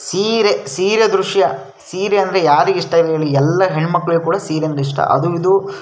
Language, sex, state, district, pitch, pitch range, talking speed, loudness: Kannada, male, Karnataka, Shimoga, 175 Hz, 155-195 Hz, 195 wpm, -15 LUFS